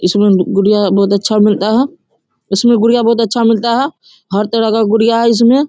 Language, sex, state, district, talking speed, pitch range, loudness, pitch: Hindi, male, Bihar, Darbhanga, 190 wpm, 205-235 Hz, -12 LUFS, 220 Hz